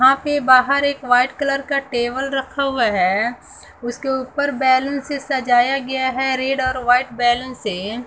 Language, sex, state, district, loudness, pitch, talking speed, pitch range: Hindi, female, Bihar, West Champaran, -18 LUFS, 260 Hz, 170 wpm, 245-275 Hz